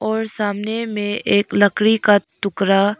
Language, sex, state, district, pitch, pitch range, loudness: Hindi, female, Arunachal Pradesh, Lower Dibang Valley, 205 Hz, 200-220 Hz, -18 LUFS